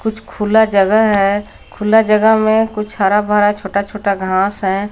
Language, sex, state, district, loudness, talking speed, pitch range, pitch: Hindi, female, Jharkhand, Garhwa, -14 LUFS, 170 wpm, 200-215 Hz, 210 Hz